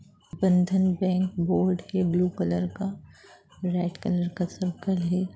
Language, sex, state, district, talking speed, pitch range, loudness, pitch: Hindi, female, Bihar, Sitamarhi, 145 wpm, 175-185 Hz, -26 LUFS, 180 Hz